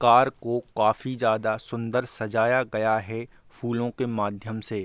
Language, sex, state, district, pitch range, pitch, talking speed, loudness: Hindi, male, Bihar, Gopalganj, 110-120 Hz, 115 Hz, 150 wpm, -26 LUFS